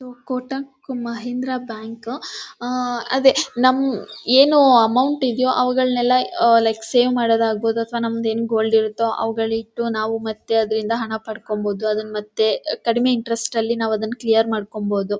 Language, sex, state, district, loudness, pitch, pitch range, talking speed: Kannada, female, Karnataka, Mysore, -20 LUFS, 230 Hz, 220-250 Hz, 120 wpm